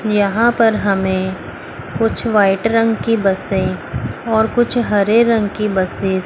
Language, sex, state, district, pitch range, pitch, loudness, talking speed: Hindi, female, Chandigarh, Chandigarh, 195-225 Hz, 210 Hz, -16 LUFS, 145 wpm